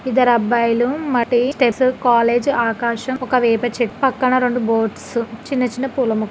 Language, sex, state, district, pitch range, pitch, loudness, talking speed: Telugu, female, Andhra Pradesh, Guntur, 235-255 Hz, 245 Hz, -18 LUFS, 125 wpm